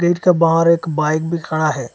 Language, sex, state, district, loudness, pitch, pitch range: Hindi, male, Assam, Hailakandi, -16 LUFS, 165 Hz, 155-170 Hz